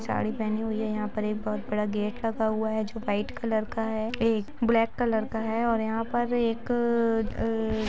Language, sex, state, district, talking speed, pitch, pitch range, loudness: Hindi, female, Jharkhand, Jamtara, 220 wpm, 220 Hz, 215-230 Hz, -28 LUFS